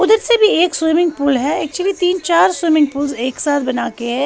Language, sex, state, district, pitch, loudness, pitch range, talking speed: Hindi, female, Haryana, Charkhi Dadri, 320 Hz, -15 LUFS, 280-360 Hz, 240 wpm